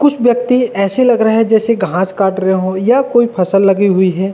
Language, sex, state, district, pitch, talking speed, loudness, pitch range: Hindi, male, Uttarakhand, Uttarkashi, 200 Hz, 235 wpm, -12 LUFS, 190-240 Hz